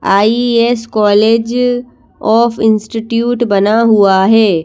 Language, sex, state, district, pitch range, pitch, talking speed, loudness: Hindi, female, Madhya Pradesh, Bhopal, 210-235 Hz, 225 Hz, 90 wpm, -11 LUFS